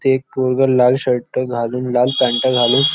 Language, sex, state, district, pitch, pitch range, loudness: Marathi, male, Maharashtra, Nagpur, 130 Hz, 125-130 Hz, -16 LUFS